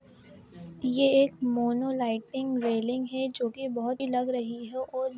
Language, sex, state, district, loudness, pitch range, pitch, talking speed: Hindi, female, Uttar Pradesh, Etah, -29 LUFS, 240-260 Hz, 255 Hz, 160 wpm